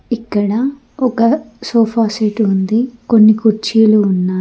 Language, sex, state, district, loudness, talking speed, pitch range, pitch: Telugu, female, Telangana, Mahabubabad, -14 LUFS, 110 wpm, 215-235 Hz, 225 Hz